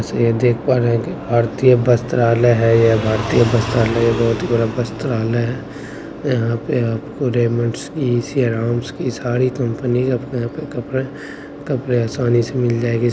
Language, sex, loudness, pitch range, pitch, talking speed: Maithili, male, -18 LUFS, 115-130 Hz, 120 Hz, 150 wpm